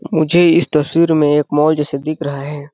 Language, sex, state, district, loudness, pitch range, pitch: Hindi, male, Chhattisgarh, Balrampur, -14 LUFS, 145-165 Hz, 150 Hz